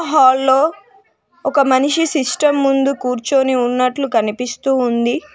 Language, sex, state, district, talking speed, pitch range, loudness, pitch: Telugu, female, Telangana, Mahabubabad, 100 wpm, 250-295 Hz, -15 LUFS, 270 Hz